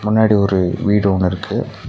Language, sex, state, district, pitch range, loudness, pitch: Tamil, male, Tamil Nadu, Nilgiris, 95-110 Hz, -16 LUFS, 105 Hz